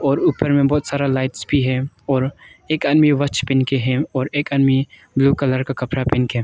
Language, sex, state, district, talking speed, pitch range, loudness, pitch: Hindi, male, Arunachal Pradesh, Longding, 225 wpm, 130-140 Hz, -19 LUFS, 135 Hz